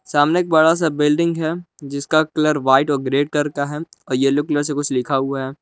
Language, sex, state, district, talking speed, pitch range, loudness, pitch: Hindi, male, Jharkhand, Palamu, 235 wpm, 140-155 Hz, -18 LUFS, 145 Hz